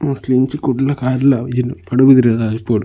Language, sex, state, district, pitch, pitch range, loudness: Tulu, male, Karnataka, Dakshina Kannada, 130 Hz, 120-135 Hz, -15 LUFS